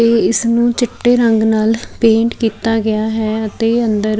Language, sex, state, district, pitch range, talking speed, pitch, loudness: Punjabi, female, Chandigarh, Chandigarh, 220-230 Hz, 185 wpm, 225 Hz, -14 LUFS